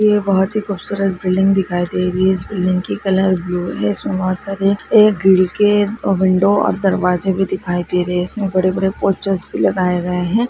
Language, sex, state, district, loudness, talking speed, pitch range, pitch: Hindi, female, Maharashtra, Sindhudurg, -16 LUFS, 210 wpm, 180-195 Hz, 190 Hz